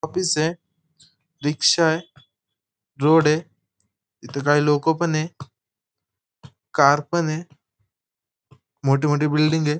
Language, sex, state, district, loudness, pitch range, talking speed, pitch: Marathi, male, Maharashtra, Pune, -20 LUFS, 135-160 Hz, 140 wpm, 150 Hz